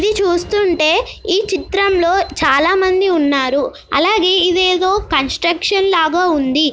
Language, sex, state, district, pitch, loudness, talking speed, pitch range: Telugu, female, Telangana, Nalgonda, 365 Hz, -14 LUFS, 105 wpm, 320-385 Hz